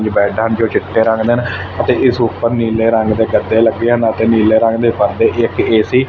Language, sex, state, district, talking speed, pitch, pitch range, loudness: Punjabi, male, Punjab, Fazilka, 245 wpm, 115 Hz, 110-115 Hz, -13 LUFS